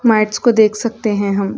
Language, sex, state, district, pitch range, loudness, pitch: Hindi, female, Uttar Pradesh, Hamirpur, 205-230 Hz, -15 LUFS, 215 Hz